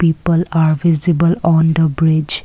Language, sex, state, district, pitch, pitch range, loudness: English, female, Assam, Kamrup Metropolitan, 165 Hz, 160-170 Hz, -14 LUFS